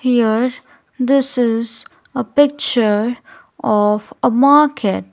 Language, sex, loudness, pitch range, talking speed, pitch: English, female, -16 LUFS, 220-270 Hz, 95 wpm, 245 Hz